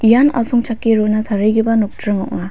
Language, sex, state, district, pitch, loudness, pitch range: Garo, female, Meghalaya, West Garo Hills, 225 Hz, -15 LUFS, 210-230 Hz